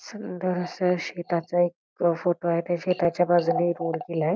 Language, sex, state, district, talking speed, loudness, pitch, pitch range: Marathi, female, Karnataka, Belgaum, 150 wpm, -25 LUFS, 175 Hz, 170-180 Hz